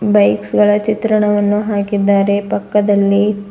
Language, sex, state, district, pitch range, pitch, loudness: Kannada, female, Karnataka, Bidar, 200-210 Hz, 205 Hz, -14 LUFS